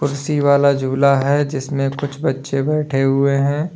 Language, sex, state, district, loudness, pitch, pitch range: Hindi, male, Uttar Pradesh, Lalitpur, -17 LUFS, 140 Hz, 135-145 Hz